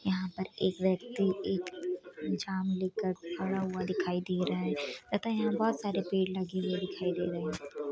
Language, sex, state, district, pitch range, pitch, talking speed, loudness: Hindi, female, Chhattisgarh, Kabirdham, 180-195 Hz, 185 Hz, 190 wpm, -33 LUFS